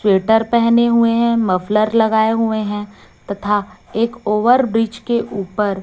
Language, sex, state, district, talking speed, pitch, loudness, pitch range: Hindi, female, Chhattisgarh, Raipur, 145 wpm, 220 Hz, -16 LUFS, 205-230 Hz